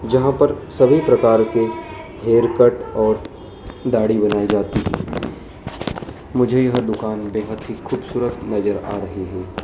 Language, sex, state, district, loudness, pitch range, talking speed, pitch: Hindi, male, Madhya Pradesh, Dhar, -19 LUFS, 105-120 Hz, 130 wpm, 110 Hz